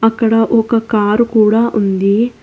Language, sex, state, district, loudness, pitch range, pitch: Telugu, female, Telangana, Hyderabad, -13 LUFS, 210-230 Hz, 225 Hz